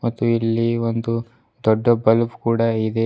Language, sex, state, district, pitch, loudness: Kannada, male, Karnataka, Bidar, 115 Hz, -20 LUFS